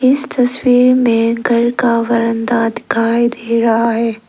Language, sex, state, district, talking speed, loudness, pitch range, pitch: Hindi, female, Arunachal Pradesh, Lower Dibang Valley, 155 wpm, -14 LUFS, 230-245 Hz, 235 Hz